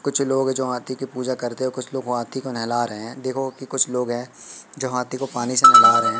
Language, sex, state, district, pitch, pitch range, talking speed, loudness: Hindi, male, Madhya Pradesh, Katni, 130 Hz, 125-135 Hz, 260 wpm, -20 LUFS